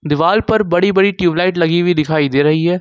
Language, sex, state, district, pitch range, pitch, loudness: Hindi, male, Jharkhand, Ranchi, 155-190 Hz, 175 Hz, -14 LUFS